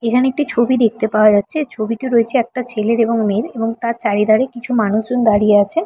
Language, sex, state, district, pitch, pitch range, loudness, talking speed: Bengali, female, West Bengal, Paschim Medinipur, 230 Hz, 215-250 Hz, -16 LUFS, 195 wpm